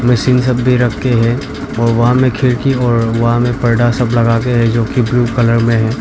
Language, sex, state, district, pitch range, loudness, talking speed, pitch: Hindi, male, Arunachal Pradesh, Papum Pare, 115-125 Hz, -13 LUFS, 220 wpm, 120 Hz